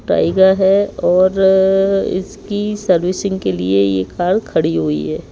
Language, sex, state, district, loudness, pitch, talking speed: Hindi, male, Madhya Pradesh, Bhopal, -15 LUFS, 190 Hz, 135 wpm